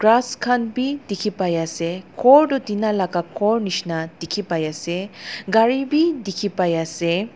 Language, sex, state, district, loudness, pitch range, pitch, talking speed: Nagamese, female, Nagaland, Dimapur, -20 LUFS, 170-235 Hz, 205 Hz, 165 wpm